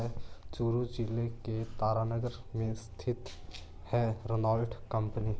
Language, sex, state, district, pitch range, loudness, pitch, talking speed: Hindi, male, Rajasthan, Churu, 110-115 Hz, -35 LUFS, 115 Hz, 100 wpm